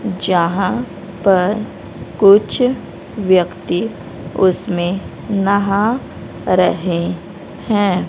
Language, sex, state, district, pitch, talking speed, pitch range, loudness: Hindi, female, Haryana, Rohtak, 190 Hz, 60 wpm, 180-205 Hz, -16 LUFS